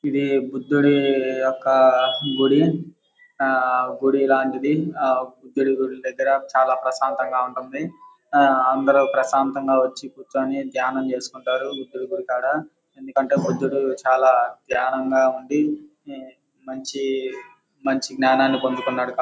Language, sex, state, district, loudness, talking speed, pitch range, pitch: Telugu, male, Andhra Pradesh, Guntur, -21 LUFS, 105 wpm, 130-140 Hz, 135 Hz